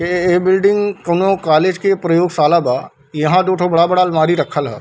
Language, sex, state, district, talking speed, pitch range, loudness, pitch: Hindi, male, Bihar, Darbhanga, 160 wpm, 155-185 Hz, -14 LUFS, 175 Hz